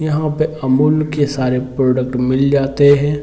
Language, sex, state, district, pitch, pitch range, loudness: Hindi, male, Bihar, Sitamarhi, 140 Hz, 130-150 Hz, -15 LUFS